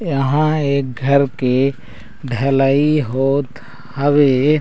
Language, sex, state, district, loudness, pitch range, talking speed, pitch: Chhattisgarhi, male, Chhattisgarh, Raigarh, -16 LUFS, 130-145 Hz, 90 wpm, 140 Hz